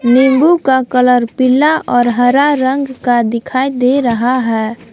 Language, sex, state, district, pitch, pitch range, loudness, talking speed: Hindi, female, Jharkhand, Palamu, 255 Hz, 240-270 Hz, -12 LUFS, 145 wpm